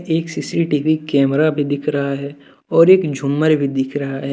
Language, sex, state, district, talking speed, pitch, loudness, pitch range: Hindi, male, Jharkhand, Deoghar, 195 wpm, 145 Hz, -17 LUFS, 140-155 Hz